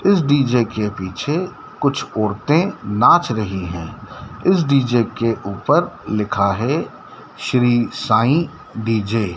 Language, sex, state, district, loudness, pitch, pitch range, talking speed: Hindi, male, Madhya Pradesh, Dhar, -18 LUFS, 115 Hz, 105-145 Hz, 120 wpm